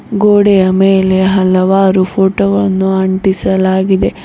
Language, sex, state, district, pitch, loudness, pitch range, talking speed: Kannada, female, Karnataka, Bidar, 190 Hz, -11 LUFS, 190-195 Hz, 85 wpm